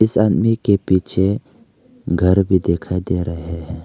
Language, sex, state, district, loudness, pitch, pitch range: Hindi, male, Arunachal Pradesh, Lower Dibang Valley, -18 LUFS, 95 Hz, 85-100 Hz